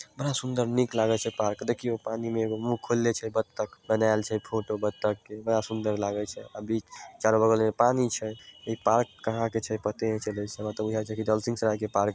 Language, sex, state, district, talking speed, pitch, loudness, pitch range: Maithili, male, Bihar, Samastipur, 205 wpm, 110 Hz, -28 LUFS, 105-115 Hz